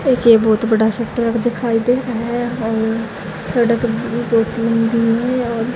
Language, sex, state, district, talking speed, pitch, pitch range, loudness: Hindi, female, Haryana, Jhajjar, 185 wpm, 230 Hz, 225-240 Hz, -17 LUFS